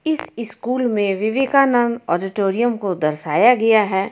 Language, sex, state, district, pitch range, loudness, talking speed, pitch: Hindi, female, Jharkhand, Ranchi, 195-245 Hz, -18 LUFS, 130 wpm, 225 Hz